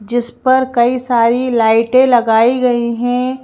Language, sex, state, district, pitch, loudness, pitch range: Hindi, female, Madhya Pradesh, Bhopal, 245 Hz, -13 LUFS, 235-255 Hz